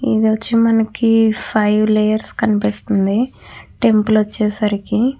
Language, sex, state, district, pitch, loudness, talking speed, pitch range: Telugu, female, Andhra Pradesh, Chittoor, 215 Hz, -16 LUFS, 105 wpm, 210-225 Hz